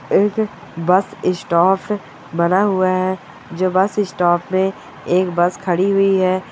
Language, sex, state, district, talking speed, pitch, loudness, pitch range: Hindi, female, Uttar Pradesh, Hamirpur, 140 wpm, 185 Hz, -18 LUFS, 175-195 Hz